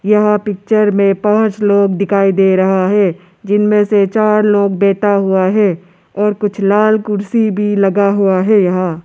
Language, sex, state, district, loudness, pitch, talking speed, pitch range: Hindi, male, Arunachal Pradesh, Lower Dibang Valley, -12 LUFS, 200 Hz, 165 wpm, 195-210 Hz